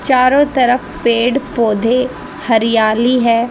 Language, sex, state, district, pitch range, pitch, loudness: Hindi, female, Haryana, Jhajjar, 230-255 Hz, 245 Hz, -13 LUFS